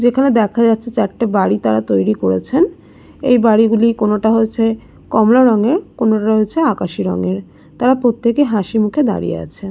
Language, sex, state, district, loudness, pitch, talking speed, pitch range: Bengali, female, West Bengal, Jalpaiguri, -15 LUFS, 225 Hz, 155 wpm, 205-240 Hz